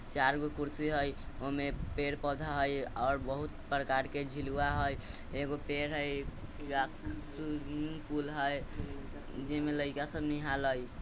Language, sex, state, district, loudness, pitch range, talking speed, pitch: Bajjika, male, Bihar, Vaishali, -36 LUFS, 135-145 Hz, 130 wpm, 145 Hz